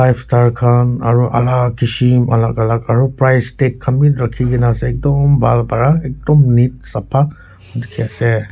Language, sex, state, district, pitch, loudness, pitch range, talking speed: Nagamese, male, Nagaland, Kohima, 125 Hz, -14 LUFS, 120-130 Hz, 150 wpm